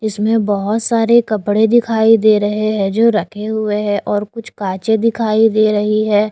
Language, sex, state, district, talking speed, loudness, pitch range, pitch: Hindi, female, Haryana, Jhajjar, 180 wpm, -14 LUFS, 210-225 Hz, 215 Hz